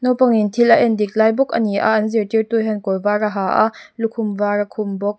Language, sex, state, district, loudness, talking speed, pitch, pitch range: Mizo, female, Mizoram, Aizawl, -17 LUFS, 245 wpm, 215 Hz, 205-225 Hz